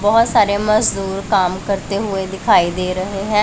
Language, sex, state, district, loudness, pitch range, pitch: Hindi, female, Punjab, Pathankot, -17 LUFS, 190-210 Hz, 195 Hz